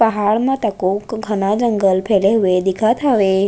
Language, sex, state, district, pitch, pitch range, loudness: Chhattisgarhi, female, Chhattisgarh, Raigarh, 210 Hz, 195-225 Hz, -16 LUFS